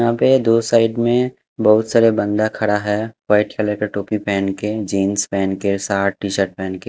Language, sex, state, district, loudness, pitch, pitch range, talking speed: Hindi, male, Haryana, Jhajjar, -18 LUFS, 105 Hz, 100-115 Hz, 210 wpm